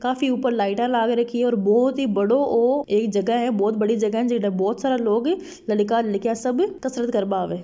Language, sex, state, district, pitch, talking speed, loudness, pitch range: Marwari, female, Rajasthan, Nagaur, 235 Hz, 190 wpm, -21 LUFS, 210-255 Hz